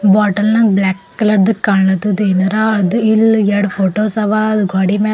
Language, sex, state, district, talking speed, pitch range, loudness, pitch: Kannada, female, Karnataka, Bidar, 165 wpm, 195-215 Hz, -13 LUFS, 205 Hz